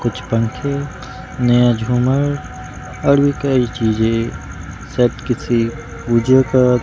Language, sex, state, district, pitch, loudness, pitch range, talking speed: Hindi, male, Bihar, Katihar, 125 Hz, -17 LUFS, 115-130 Hz, 105 wpm